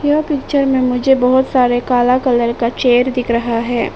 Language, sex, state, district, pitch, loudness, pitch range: Hindi, female, Arunachal Pradesh, Papum Pare, 250 Hz, -14 LUFS, 245-265 Hz